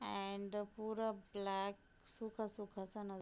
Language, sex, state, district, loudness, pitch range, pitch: Hindi, female, Bihar, Gopalganj, -44 LUFS, 195-215 Hz, 205 Hz